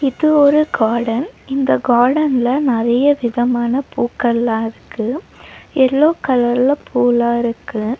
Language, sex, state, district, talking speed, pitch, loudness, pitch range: Tamil, female, Tamil Nadu, Nilgiris, 95 wpm, 245 Hz, -16 LUFS, 235-275 Hz